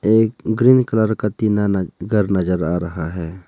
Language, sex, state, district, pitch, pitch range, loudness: Hindi, male, Arunachal Pradesh, Lower Dibang Valley, 105 Hz, 90-110 Hz, -18 LUFS